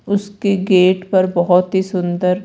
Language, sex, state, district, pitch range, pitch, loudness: Hindi, female, Rajasthan, Jaipur, 180-195 Hz, 185 Hz, -15 LUFS